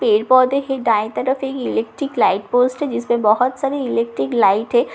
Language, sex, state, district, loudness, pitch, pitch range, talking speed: Hindi, female, Bihar, Katihar, -18 LUFS, 250 Hz, 230-270 Hz, 180 wpm